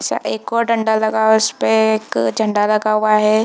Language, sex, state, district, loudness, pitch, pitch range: Hindi, female, Bihar, Purnia, -16 LUFS, 220 Hz, 215-220 Hz